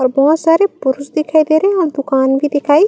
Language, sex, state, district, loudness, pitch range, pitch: Chhattisgarhi, female, Chhattisgarh, Raigarh, -14 LUFS, 275-315 Hz, 295 Hz